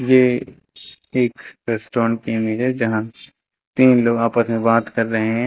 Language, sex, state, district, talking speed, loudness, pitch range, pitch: Hindi, male, Uttar Pradesh, Lucknow, 165 wpm, -18 LUFS, 115-125 Hz, 115 Hz